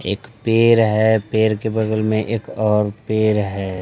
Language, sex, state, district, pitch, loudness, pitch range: Hindi, male, Bihar, West Champaran, 110 Hz, -18 LUFS, 105-110 Hz